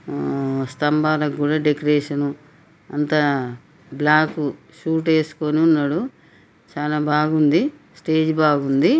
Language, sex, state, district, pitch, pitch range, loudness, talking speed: Telugu, female, Telangana, Nalgonda, 150 Hz, 145-160 Hz, -20 LUFS, 85 wpm